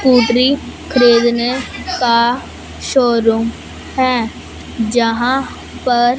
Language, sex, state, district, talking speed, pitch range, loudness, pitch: Hindi, female, Punjab, Fazilka, 60 wpm, 235-255 Hz, -15 LUFS, 240 Hz